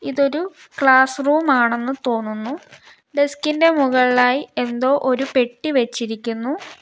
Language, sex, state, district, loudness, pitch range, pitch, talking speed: Malayalam, female, Kerala, Kollam, -18 LUFS, 245-285 Hz, 265 Hz, 105 wpm